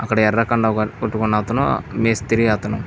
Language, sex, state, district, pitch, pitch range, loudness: Telugu, male, Andhra Pradesh, Krishna, 110 Hz, 110-115 Hz, -19 LUFS